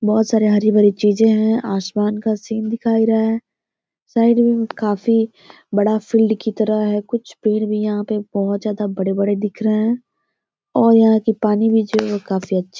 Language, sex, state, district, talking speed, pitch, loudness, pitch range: Hindi, female, Bihar, Gopalganj, 200 wpm, 215 Hz, -17 LUFS, 210-225 Hz